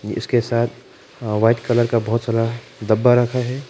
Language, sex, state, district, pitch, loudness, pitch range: Hindi, male, Arunachal Pradesh, Papum Pare, 115 Hz, -19 LUFS, 115-120 Hz